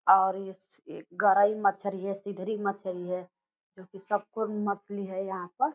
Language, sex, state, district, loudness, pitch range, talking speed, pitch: Hindi, female, Bihar, Purnia, -29 LUFS, 190-200 Hz, 155 wpm, 195 Hz